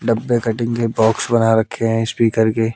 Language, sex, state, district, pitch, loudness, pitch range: Hindi, male, Haryana, Jhajjar, 115 Hz, -17 LUFS, 110-115 Hz